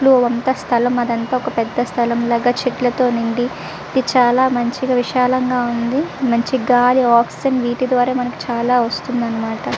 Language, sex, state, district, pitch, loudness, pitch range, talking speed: Telugu, female, Andhra Pradesh, Visakhapatnam, 245 Hz, -17 LUFS, 235-255 Hz, 125 wpm